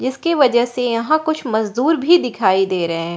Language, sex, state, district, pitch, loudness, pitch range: Hindi, female, Bihar, Katihar, 245 Hz, -17 LUFS, 215-310 Hz